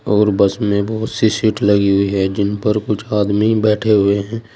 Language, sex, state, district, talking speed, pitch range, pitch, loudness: Hindi, male, Uttar Pradesh, Saharanpur, 210 wpm, 100-110 Hz, 105 Hz, -16 LUFS